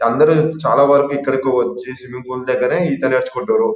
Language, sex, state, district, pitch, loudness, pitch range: Telugu, male, Telangana, Nalgonda, 135 Hz, -16 LUFS, 125-155 Hz